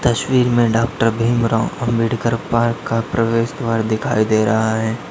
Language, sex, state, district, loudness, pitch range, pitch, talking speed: Hindi, male, Uttar Pradesh, Lalitpur, -17 LUFS, 115-120 Hz, 115 Hz, 150 wpm